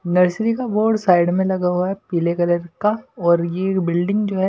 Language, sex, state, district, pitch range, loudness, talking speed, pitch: Hindi, male, Delhi, New Delhi, 175-210 Hz, -19 LUFS, 215 wpm, 185 Hz